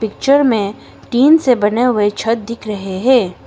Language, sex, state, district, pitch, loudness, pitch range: Hindi, female, Arunachal Pradesh, Longding, 230 Hz, -14 LUFS, 205-250 Hz